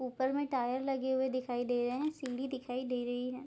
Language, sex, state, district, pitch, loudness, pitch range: Hindi, female, Bihar, Bhagalpur, 255 Hz, -35 LUFS, 245-265 Hz